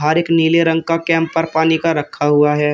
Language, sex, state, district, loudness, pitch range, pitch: Hindi, male, Uttar Pradesh, Shamli, -15 LUFS, 150-165 Hz, 160 Hz